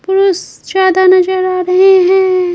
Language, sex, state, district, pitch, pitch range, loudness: Hindi, female, Bihar, Patna, 375 Hz, 370-380 Hz, -10 LUFS